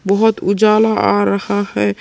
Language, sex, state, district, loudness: Hindi, male, Chhattisgarh, Sukma, -14 LUFS